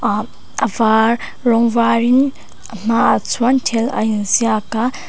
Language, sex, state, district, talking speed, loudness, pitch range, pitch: Mizo, female, Mizoram, Aizawl, 155 wpm, -16 LUFS, 220-245 Hz, 230 Hz